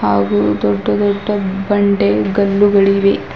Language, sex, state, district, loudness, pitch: Kannada, female, Karnataka, Bidar, -14 LUFS, 195 Hz